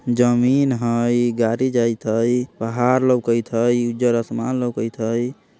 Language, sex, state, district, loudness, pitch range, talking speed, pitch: Bajjika, male, Bihar, Vaishali, -19 LUFS, 115-125 Hz, 130 wpm, 120 Hz